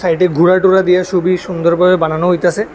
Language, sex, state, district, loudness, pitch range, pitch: Bengali, male, Tripura, West Tripura, -12 LUFS, 175-185 Hz, 180 Hz